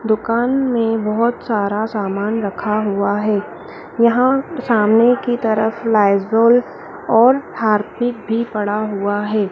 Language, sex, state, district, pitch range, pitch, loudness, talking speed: Hindi, female, Madhya Pradesh, Dhar, 210-235 Hz, 220 Hz, -17 LUFS, 120 wpm